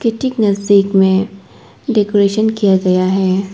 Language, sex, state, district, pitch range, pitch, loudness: Hindi, female, Arunachal Pradesh, Papum Pare, 190-215 Hz, 200 Hz, -13 LUFS